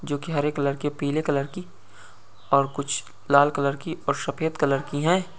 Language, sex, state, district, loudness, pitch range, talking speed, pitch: Hindi, male, Uttar Pradesh, Ghazipur, -25 LUFS, 140-150 Hz, 190 wpm, 145 Hz